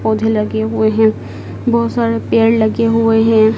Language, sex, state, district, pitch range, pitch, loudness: Hindi, female, Madhya Pradesh, Dhar, 220-230 Hz, 225 Hz, -14 LUFS